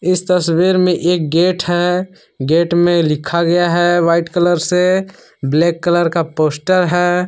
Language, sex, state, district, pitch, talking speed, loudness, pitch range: Hindi, male, Jharkhand, Palamu, 175 Hz, 155 wpm, -14 LUFS, 170-180 Hz